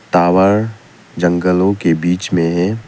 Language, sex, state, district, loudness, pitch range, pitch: Hindi, male, Arunachal Pradesh, Papum Pare, -14 LUFS, 85-100 Hz, 90 Hz